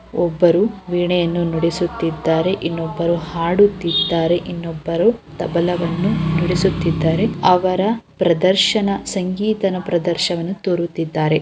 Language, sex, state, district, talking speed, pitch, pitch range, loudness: Kannada, female, Karnataka, Chamarajanagar, 70 wpm, 175 Hz, 170-190 Hz, -18 LUFS